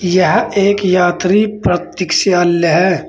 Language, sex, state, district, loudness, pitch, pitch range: Hindi, male, Uttar Pradesh, Saharanpur, -13 LUFS, 180 Hz, 175-195 Hz